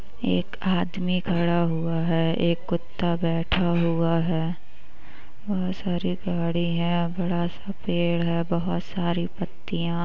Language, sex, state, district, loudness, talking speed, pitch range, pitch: Hindi, female, Uttar Pradesh, Budaun, -25 LUFS, 125 wpm, 170-180 Hz, 170 Hz